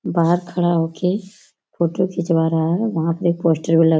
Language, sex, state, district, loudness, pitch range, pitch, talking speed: Hindi, female, Jharkhand, Sahebganj, -19 LUFS, 165-180 Hz, 170 Hz, 165 wpm